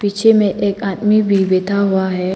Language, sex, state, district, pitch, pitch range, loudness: Hindi, female, Arunachal Pradesh, Papum Pare, 200 Hz, 190-205 Hz, -15 LUFS